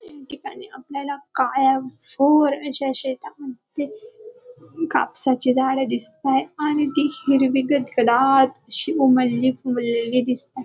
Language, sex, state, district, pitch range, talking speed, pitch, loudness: Marathi, female, Maharashtra, Dhule, 260-295 Hz, 100 wpm, 270 Hz, -20 LUFS